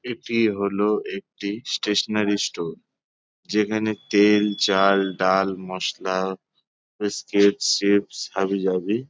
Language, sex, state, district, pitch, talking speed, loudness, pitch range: Bengali, male, West Bengal, Paschim Medinipur, 100 Hz, 100 wpm, -22 LUFS, 95-105 Hz